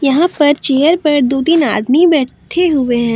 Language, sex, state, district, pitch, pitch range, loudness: Hindi, female, Jharkhand, Deoghar, 290 Hz, 265-325 Hz, -12 LUFS